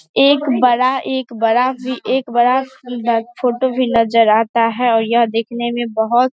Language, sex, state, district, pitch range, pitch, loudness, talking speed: Hindi, female, Bihar, Saharsa, 230-255 Hz, 240 Hz, -16 LUFS, 180 wpm